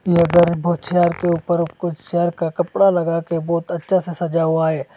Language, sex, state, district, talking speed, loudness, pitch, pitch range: Hindi, male, Assam, Hailakandi, 170 wpm, -18 LUFS, 170 Hz, 165-175 Hz